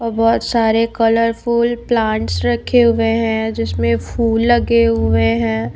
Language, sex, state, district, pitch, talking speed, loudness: Hindi, female, Bihar, Patna, 225 Hz, 135 wpm, -15 LUFS